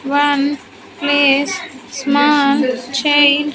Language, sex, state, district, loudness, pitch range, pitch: English, female, Andhra Pradesh, Sri Satya Sai, -14 LUFS, 275-290 Hz, 285 Hz